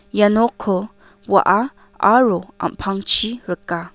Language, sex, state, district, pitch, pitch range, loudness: Garo, female, Meghalaya, West Garo Hills, 195 Hz, 180-220 Hz, -18 LUFS